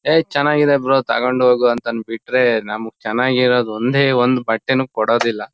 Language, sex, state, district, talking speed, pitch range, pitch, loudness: Kannada, male, Karnataka, Shimoga, 150 wpm, 115-130 Hz, 125 Hz, -16 LUFS